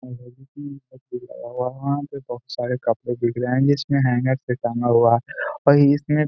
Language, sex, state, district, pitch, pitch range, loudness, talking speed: Hindi, male, Bihar, Gaya, 125 Hz, 120-140 Hz, -21 LUFS, 155 wpm